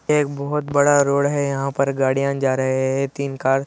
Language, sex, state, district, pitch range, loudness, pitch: Hindi, male, Andhra Pradesh, Anantapur, 135-145 Hz, -20 LUFS, 140 Hz